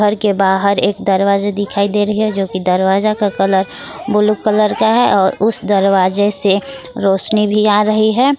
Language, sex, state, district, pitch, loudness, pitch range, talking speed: Hindi, female, Jharkhand, Garhwa, 205 Hz, -14 LUFS, 195-215 Hz, 185 wpm